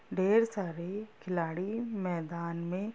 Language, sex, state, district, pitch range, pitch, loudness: Hindi, female, Bihar, Sitamarhi, 170-210 Hz, 185 Hz, -33 LUFS